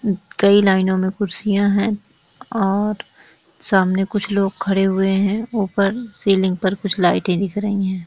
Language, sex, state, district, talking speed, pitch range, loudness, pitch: Hindi, female, Jharkhand, Sahebganj, 150 wpm, 190-205 Hz, -18 LUFS, 200 Hz